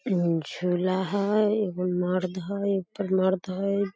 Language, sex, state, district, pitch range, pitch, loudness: Maithili, female, Bihar, Samastipur, 180-200 Hz, 190 Hz, -26 LUFS